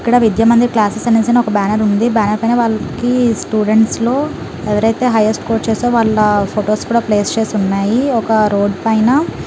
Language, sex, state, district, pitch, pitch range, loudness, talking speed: Telugu, female, Telangana, Karimnagar, 225 Hz, 210-235 Hz, -14 LUFS, 160 wpm